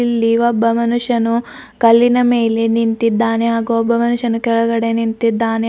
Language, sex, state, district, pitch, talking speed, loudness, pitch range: Kannada, female, Karnataka, Bidar, 230 Hz, 115 wpm, -15 LUFS, 230-235 Hz